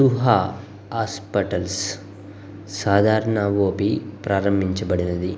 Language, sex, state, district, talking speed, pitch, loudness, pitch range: Telugu, male, Andhra Pradesh, Guntur, 55 wpm, 100 Hz, -22 LUFS, 95-105 Hz